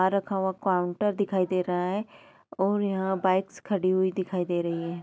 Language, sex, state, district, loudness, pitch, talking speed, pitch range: Hindi, female, Uttar Pradesh, Etah, -27 LUFS, 190 Hz, 205 wpm, 180-195 Hz